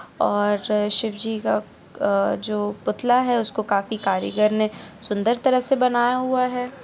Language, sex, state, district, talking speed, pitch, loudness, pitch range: Hindi, female, Andhra Pradesh, Anantapur, 160 wpm, 220 Hz, -22 LUFS, 210-250 Hz